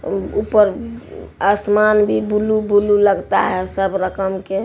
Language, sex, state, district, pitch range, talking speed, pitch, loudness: Hindi, female, Bihar, Supaul, 195-210 Hz, 130 wpm, 205 Hz, -16 LUFS